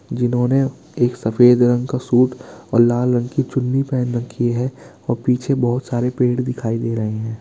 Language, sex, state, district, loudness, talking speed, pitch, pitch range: Hindi, male, Bihar, Kishanganj, -18 LUFS, 185 wpm, 125 Hz, 120-125 Hz